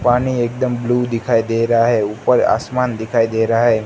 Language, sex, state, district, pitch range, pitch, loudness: Hindi, male, Gujarat, Gandhinagar, 115-125 Hz, 120 Hz, -17 LUFS